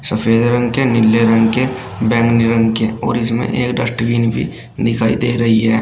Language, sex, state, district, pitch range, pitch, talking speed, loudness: Hindi, male, Uttar Pradesh, Shamli, 115-120 Hz, 115 Hz, 185 wpm, -15 LUFS